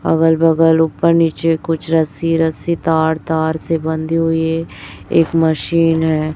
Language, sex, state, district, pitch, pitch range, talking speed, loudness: Hindi, female, Chhattisgarh, Raipur, 160 Hz, 160-165 Hz, 150 wpm, -15 LUFS